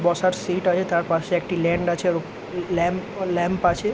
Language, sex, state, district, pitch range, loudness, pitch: Bengali, male, West Bengal, Jhargram, 175-185 Hz, -23 LUFS, 175 Hz